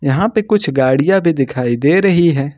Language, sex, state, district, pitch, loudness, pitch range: Hindi, male, Jharkhand, Ranchi, 150 Hz, -14 LUFS, 135-190 Hz